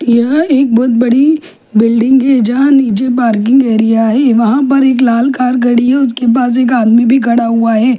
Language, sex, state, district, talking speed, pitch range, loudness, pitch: Hindi, female, Delhi, New Delhi, 195 wpm, 230-265 Hz, -10 LUFS, 245 Hz